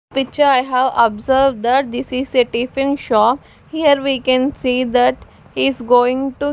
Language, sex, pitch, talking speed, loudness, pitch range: English, female, 260 Hz, 175 wpm, -16 LUFS, 250-275 Hz